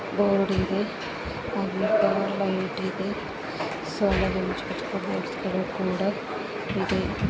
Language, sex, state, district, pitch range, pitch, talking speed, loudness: Kannada, male, Karnataka, Mysore, 190-205 Hz, 195 Hz, 60 wpm, -27 LUFS